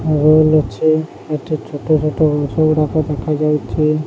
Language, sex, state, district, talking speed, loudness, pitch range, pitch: Odia, male, Odisha, Sambalpur, 75 wpm, -16 LUFS, 150-155 Hz, 155 Hz